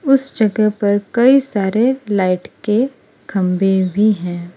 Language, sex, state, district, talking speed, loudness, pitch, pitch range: Hindi, female, Gujarat, Valsad, 130 wpm, -16 LUFS, 210 Hz, 190-245 Hz